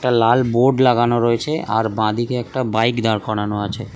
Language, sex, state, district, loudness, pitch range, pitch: Bengali, male, West Bengal, Kolkata, -18 LUFS, 110-125 Hz, 115 Hz